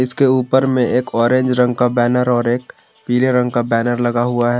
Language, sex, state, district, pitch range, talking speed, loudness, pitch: Hindi, male, Jharkhand, Garhwa, 120-125 Hz, 220 wpm, -16 LUFS, 125 Hz